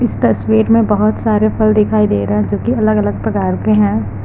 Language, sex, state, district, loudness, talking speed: Hindi, female, Uttar Pradesh, Lucknow, -13 LUFS, 225 wpm